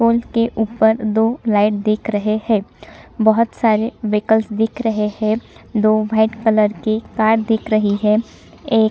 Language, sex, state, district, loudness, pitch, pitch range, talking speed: Hindi, female, Chhattisgarh, Sukma, -17 LUFS, 220 Hz, 215-225 Hz, 150 wpm